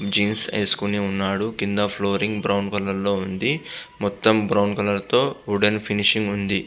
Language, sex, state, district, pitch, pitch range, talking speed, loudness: Telugu, male, Andhra Pradesh, Visakhapatnam, 100 Hz, 100-105 Hz, 155 wpm, -22 LUFS